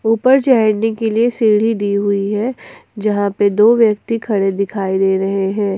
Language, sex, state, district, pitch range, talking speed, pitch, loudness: Hindi, female, Jharkhand, Ranchi, 200-225 Hz, 175 wpm, 210 Hz, -15 LUFS